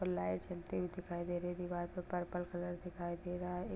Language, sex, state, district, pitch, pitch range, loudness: Hindi, female, Bihar, Madhepura, 175 Hz, 175-180 Hz, -42 LUFS